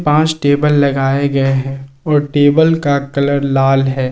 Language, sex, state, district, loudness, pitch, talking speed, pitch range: Hindi, male, Jharkhand, Palamu, -13 LUFS, 140 Hz, 160 wpm, 135-150 Hz